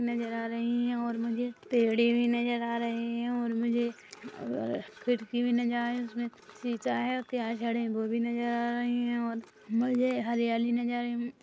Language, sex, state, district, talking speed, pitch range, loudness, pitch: Hindi, female, Chhattisgarh, Rajnandgaon, 195 wpm, 235-240 Hz, -31 LUFS, 235 Hz